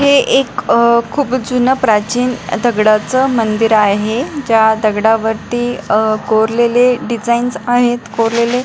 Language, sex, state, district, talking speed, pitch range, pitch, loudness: Marathi, female, Maharashtra, Pune, 110 wpm, 220-250 Hz, 235 Hz, -13 LUFS